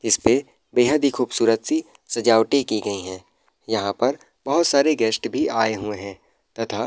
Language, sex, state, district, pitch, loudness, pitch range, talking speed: Hindi, male, Uttar Pradesh, Muzaffarnagar, 115 Hz, -21 LUFS, 105-140 Hz, 165 wpm